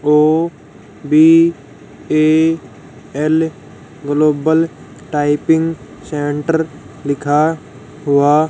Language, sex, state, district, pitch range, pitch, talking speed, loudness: Hindi, female, Haryana, Rohtak, 145-160 Hz, 150 Hz, 65 wpm, -15 LUFS